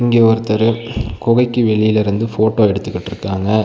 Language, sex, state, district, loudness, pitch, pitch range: Tamil, male, Tamil Nadu, Nilgiris, -15 LUFS, 110 Hz, 105-115 Hz